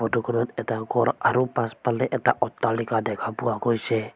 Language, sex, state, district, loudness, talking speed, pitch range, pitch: Assamese, female, Assam, Sonitpur, -25 LUFS, 160 wpm, 115-120 Hz, 115 Hz